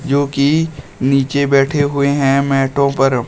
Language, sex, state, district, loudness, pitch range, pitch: Hindi, male, Uttar Pradesh, Shamli, -15 LUFS, 135-140 Hz, 140 Hz